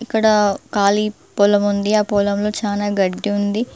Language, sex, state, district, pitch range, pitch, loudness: Telugu, female, Telangana, Mahabubabad, 200-210 Hz, 205 Hz, -18 LUFS